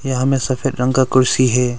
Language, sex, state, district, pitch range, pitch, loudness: Hindi, male, Arunachal Pradesh, Longding, 125-130 Hz, 130 Hz, -16 LUFS